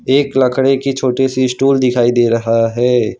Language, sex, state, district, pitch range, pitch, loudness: Hindi, male, Gujarat, Valsad, 120-135 Hz, 130 Hz, -14 LUFS